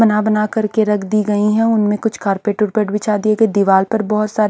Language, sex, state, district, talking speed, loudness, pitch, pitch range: Hindi, female, Haryana, Charkhi Dadri, 265 wpm, -16 LUFS, 210 Hz, 210-215 Hz